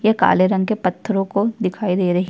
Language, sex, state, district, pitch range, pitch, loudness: Hindi, female, Uttar Pradesh, Jyotiba Phule Nagar, 185-210 Hz, 195 Hz, -19 LUFS